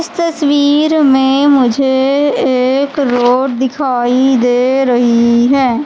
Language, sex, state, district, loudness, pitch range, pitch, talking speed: Hindi, female, Madhya Pradesh, Katni, -11 LUFS, 250-285 Hz, 265 Hz, 100 wpm